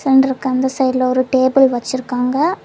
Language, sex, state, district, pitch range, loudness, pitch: Tamil, female, Tamil Nadu, Kanyakumari, 255-265 Hz, -16 LUFS, 260 Hz